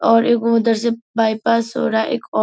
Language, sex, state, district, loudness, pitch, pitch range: Hindi, female, Bihar, Purnia, -17 LUFS, 230 Hz, 225-230 Hz